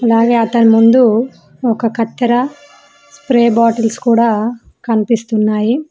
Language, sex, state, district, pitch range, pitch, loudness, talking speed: Telugu, female, Telangana, Mahabubabad, 220-240 Hz, 230 Hz, -13 LUFS, 90 wpm